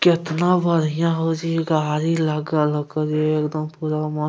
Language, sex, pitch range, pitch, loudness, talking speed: Angika, male, 155-165 Hz, 155 Hz, -21 LUFS, 165 wpm